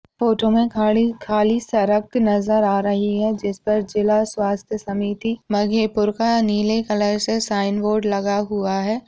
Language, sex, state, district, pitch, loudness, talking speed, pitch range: Hindi, female, Bihar, Madhepura, 210 Hz, -20 LUFS, 150 wpm, 205-220 Hz